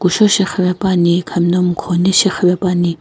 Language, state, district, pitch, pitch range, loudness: Sumi, Nagaland, Kohima, 180 Hz, 175-190 Hz, -14 LUFS